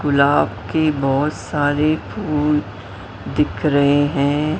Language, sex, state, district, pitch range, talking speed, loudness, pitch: Hindi, male, Maharashtra, Mumbai Suburban, 135-150 Hz, 105 wpm, -18 LUFS, 145 Hz